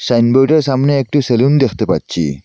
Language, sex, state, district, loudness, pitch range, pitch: Bengali, male, Assam, Hailakandi, -13 LUFS, 120-140 Hz, 130 Hz